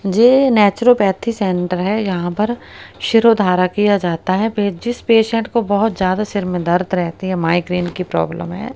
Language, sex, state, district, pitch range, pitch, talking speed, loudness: Hindi, female, Haryana, Rohtak, 180-225 Hz, 200 Hz, 170 wpm, -16 LUFS